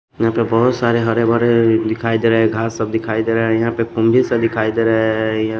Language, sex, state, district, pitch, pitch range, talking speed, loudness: Hindi, male, Maharashtra, Washim, 115 Hz, 110-115 Hz, 280 wpm, -16 LUFS